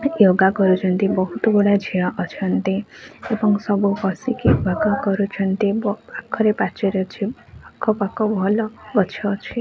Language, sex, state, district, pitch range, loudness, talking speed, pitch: Odia, female, Odisha, Khordha, 195-215 Hz, -20 LUFS, 125 wpm, 200 Hz